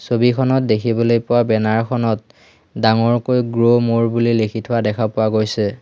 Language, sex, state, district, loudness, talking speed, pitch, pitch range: Assamese, male, Assam, Hailakandi, -17 LUFS, 145 wpm, 115 Hz, 110-120 Hz